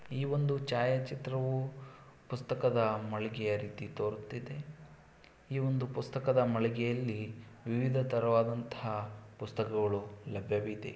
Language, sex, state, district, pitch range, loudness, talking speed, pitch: Kannada, male, Karnataka, Shimoga, 110-130 Hz, -34 LUFS, 90 wpm, 120 Hz